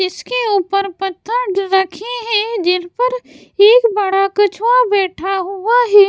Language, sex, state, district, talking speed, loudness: Hindi, female, Bihar, West Champaran, 140 wpm, -15 LUFS